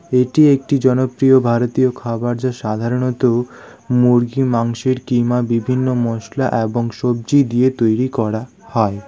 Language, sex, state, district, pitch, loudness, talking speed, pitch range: Bengali, male, West Bengal, Alipurduar, 125 Hz, -17 LUFS, 120 wpm, 115-130 Hz